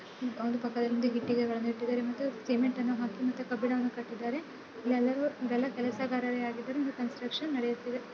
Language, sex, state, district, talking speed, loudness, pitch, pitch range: Kannada, female, Karnataka, Chamarajanagar, 120 wpm, -33 LUFS, 245 Hz, 240-255 Hz